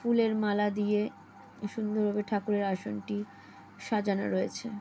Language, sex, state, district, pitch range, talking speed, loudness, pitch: Bengali, female, West Bengal, Jalpaiguri, 190-215 Hz, 110 wpm, -31 LUFS, 205 Hz